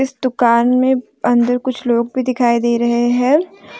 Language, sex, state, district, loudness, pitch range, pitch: Hindi, female, Jharkhand, Deoghar, -15 LUFS, 235-260 Hz, 245 Hz